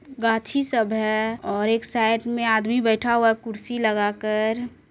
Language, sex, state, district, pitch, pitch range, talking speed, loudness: Maithili, female, Bihar, Supaul, 225 Hz, 220-235 Hz, 160 wpm, -22 LUFS